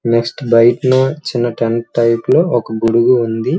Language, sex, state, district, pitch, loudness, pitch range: Telugu, male, Andhra Pradesh, Srikakulam, 120 Hz, -14 LUFS, 115-130 Hz